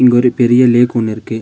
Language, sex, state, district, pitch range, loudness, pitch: Tamil, male, Tamil Nadu, Nilgiris, 115-125 Hz, -12 LUFS, 120 Hz